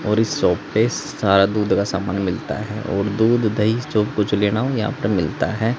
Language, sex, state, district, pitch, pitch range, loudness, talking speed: Hindi, male, Haryana, Jhajjar, 105 Hz, 100-110 Hz, -20 LUFS, 220 wpm